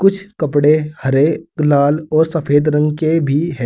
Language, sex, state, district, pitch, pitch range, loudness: Hindi, male, Uttar Pradesh, Saharanpur, 150 Hz, 145-160 Hz, -15 LUFS